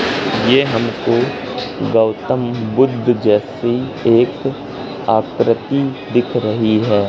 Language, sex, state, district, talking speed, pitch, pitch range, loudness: Hindi, male, Madhya Pradesh, Katni, 85 wpm, 115 Hz, 110-130 Hz, -16 LUFS